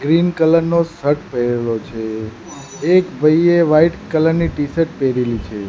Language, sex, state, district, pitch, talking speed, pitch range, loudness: Gujarati, male, Gujarat, Gandhinagar, 155 Hz, 145 wpm, 120-165 Hz, -16 LUFS